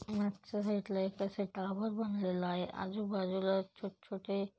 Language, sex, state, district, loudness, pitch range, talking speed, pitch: Marathi, female, Maharashtra, Chandrapur, -37 LUFS, 190-205 Hz, 145 wpm, 195 Hz